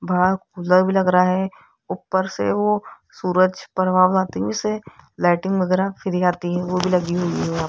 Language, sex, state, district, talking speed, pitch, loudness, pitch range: Hindi, female, Rajasthan, Jaipur, 205 wpm, 185 Hz, -20 LUFS, 175-190 Hz